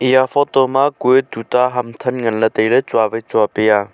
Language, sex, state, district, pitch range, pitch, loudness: Wancho, male, Arunachal Pradesh, Longding, 115-130 Hz, 125 Hz, -16 LUFS